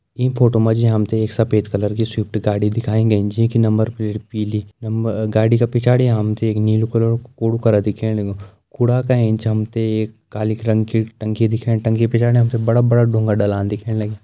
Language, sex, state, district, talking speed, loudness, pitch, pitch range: Garhwali, male, Uttarakhand, Uttarkashi, 230 wpm, -18 LUFS, 110 Hz, 110-115 Hz